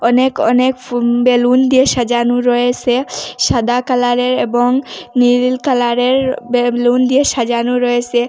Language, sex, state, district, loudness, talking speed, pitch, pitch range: Bengali, female, Assam, Hailakandi, -14 LUFS, 115 wpm, 245 Hz, 240-255 Hz